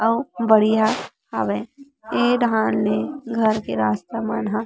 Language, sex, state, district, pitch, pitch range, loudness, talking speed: Chhattisgarhi, female, Chhattisgarh, Rajnandgaon, 225 Hz, 215-240 Hz, -21 LUFS, 155 wpm